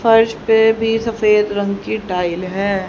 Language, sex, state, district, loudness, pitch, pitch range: Hindi, female, Haryana, Rohtak, -16 LUFS, 210 Hz, 195-225 Hz